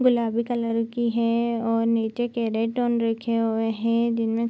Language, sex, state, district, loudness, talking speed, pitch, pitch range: Hindi, female, Bihar, Supaul, -24 LUFS, 160 wpm, 230 Hz, 230-235 Hz